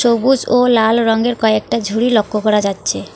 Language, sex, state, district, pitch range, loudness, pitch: Bengali, female, West Bengal, Alipurduar, 215-240 Hz, -14 LUFS, 225 Hz